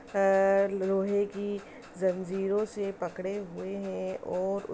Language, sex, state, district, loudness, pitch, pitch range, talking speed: Hindi, female, Bihar, Samastipur, -30 LUFS, 195 Hz, 190-200 Hz, 125 wpm